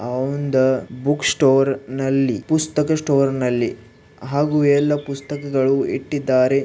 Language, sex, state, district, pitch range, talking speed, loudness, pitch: Kannada, male, Karnataka, Belgaum, 130-145 Hz, 100 wpm, -19 LUFS, 135 Hz